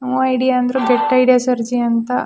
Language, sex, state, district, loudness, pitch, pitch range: Kannada, female, Karnataka, Shimoga, -15 LUFS, 255 Hz, 245-255 Hz